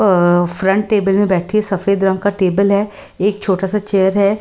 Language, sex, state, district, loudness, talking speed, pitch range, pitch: Hindi, female, Delhi, New Delhi, -14 LUFS, 220 wpm, 190-205 Hz, 195 Hz